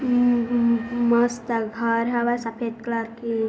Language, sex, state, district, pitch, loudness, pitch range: Chhattisgarhi, female, Chhattisgarh, Bilaspur, 235 Hz, -23 LUFS, 230-240 Hz